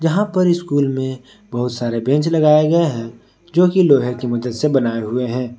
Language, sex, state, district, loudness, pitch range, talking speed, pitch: Hindi, male, Jharkhand, Ranchi, -17 LUFS, 120-165 Hz, 205 wpm, 130 Hz